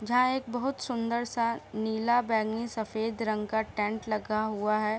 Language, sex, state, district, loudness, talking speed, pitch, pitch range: Hindi, female, Bihar, East Champaran, -30 LUFS, 170 wpm, 220 Hz, 215-235 Hz